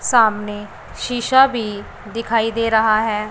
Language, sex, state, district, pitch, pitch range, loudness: Hindi, female, Punjab, Pathankot, 225 Hz, 210-230 Hz, -17 LUFS